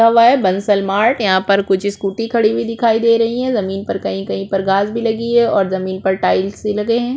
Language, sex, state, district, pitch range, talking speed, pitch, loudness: Hindi, female, Chhattisgarh, Korba, 190-230 Hz, 275 wpm, 205 Hz, -16 LUFS